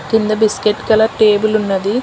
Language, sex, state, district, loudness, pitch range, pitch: Telugu, female, Telangana, Hyderabad, -14 LUFS, 205-220 Hz, 215 Hz